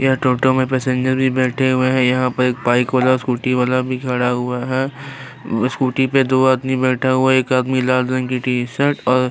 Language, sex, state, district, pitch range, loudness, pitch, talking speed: Hindi, male, Chhattisgarh, Kabirdham, 125-130 Hz, -17 LUFS, 130 Hz, 220 wpm